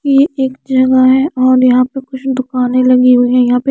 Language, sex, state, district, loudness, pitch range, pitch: Hindi, female, Chandigarh, Chandigarh, -11 LUFS, 250-265 Hz, 255 Hz